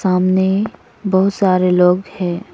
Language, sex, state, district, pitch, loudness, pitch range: Hindi, female, Arunachal Pradesh, Papum Pare, 190 Hz, -15 LUFS, 180-195 Hz